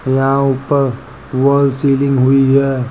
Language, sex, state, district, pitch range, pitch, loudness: Hindi, male, Uttar Pradesh, Lucknow, 135-140 Hz, 135 Hz, -13 LUFS